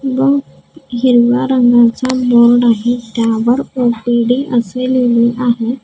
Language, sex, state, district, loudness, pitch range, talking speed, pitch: Marathi, female, Maharashtra, Gondia, -12 LUFS, 235-255 Hz, 90 wpm, 240 Hz